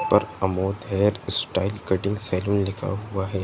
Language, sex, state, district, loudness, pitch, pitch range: Hindi, male, Bihar, East Champaran, -25 LUFS, 100 Hz, 95-105 Hz